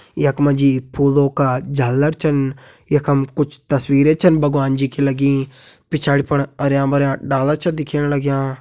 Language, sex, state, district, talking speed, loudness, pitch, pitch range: Hindi, male, Uttarakhand, Uttarkashi, 160 wpm, -17 LUFS, 140 Hz, 135-145 Hz